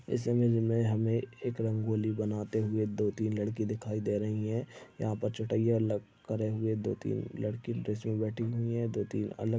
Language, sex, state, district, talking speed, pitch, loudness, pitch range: Hindi, male, Chhattisgarh, Balrampur, 205 wpm, 110 Hz, -33 LUFS, 105-115 Hz